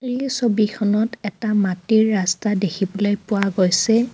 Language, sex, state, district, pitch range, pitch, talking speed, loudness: Assamese, female, Assam, Kamrup Metropolitan, 195-225 Hz, 210 Hz, 115 wpm, -20 LUFS